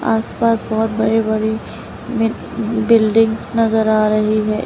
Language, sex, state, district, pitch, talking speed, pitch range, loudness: Hindi, female, Uttar Pradesh, Lalitpur, 220 Hz, 115 wpm, 220-225 Hz, -16 LUFS